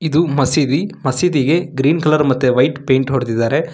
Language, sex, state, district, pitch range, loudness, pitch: Kannada, male, Karnataka, Bangalore, 130-160 Hz, -15 LUFS, 140 Hz